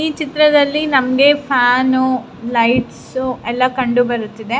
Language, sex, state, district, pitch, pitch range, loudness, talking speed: Kannada, female, Karnataka, Raichur, 255 Hz, 245-285 Hz, -15 LUFS, 105 wpm